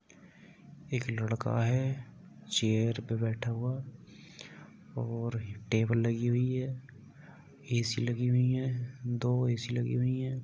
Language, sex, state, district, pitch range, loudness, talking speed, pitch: Hindi, male, Uttar Pradesh, Jalaun, 115-130 Hz, -32 LUFS, 120 wpm, 125 Hz